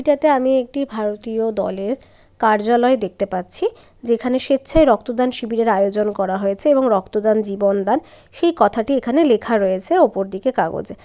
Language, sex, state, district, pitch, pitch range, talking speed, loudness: Bengali, female, West Bengal, Dakshin Dinajpur, 230 Hz, 205-270 Hz, 145 wpm, -18 LUFS